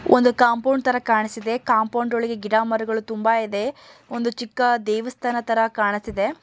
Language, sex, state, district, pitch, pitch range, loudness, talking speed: Kannada, male, Karnataka, Mysore, 230 Hz, 220-245 Hz, -21 LUFS, 140 wpm